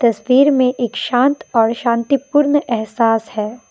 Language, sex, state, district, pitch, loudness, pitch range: Hindi, female, Assam, Kamrup Metropolitan, 240 Hz, -16 LUFS, 225-265 Hz